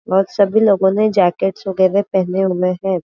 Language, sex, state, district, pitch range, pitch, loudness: Hindi, female, Maharashtra, Aurangabad, 185-200 Hz, 190 Hz, -16 LUFS